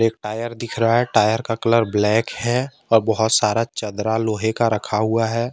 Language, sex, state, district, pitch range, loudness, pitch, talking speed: Hindi, male, Jharkhand, Ranchi, 110-115 Hz, -20 LUFS, 115 Hz, 205 wpm